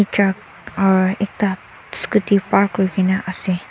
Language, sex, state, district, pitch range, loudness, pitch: Nagamese, male, Nagaland, Dimapur, 185-200 Hz, -18 LUFS, 195 Hz